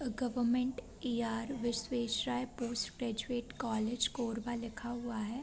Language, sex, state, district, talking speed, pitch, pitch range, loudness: Hindi, female, Chhattisgarh, Korba, 75 wpm, 240 Hz, 230-245 Hz, -37 LUFS